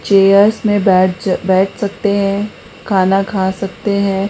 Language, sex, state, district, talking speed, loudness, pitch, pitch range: Hindi, female, Rajasthan, Jaipur, 140 wpm, -14 LUFS, 195 Hz, 190-205 Hz